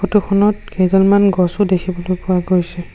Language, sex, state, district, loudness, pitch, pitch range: Assamese, male, Assam, Sonitpur, -15 LUFS, 185 Hz, 180-200 Hz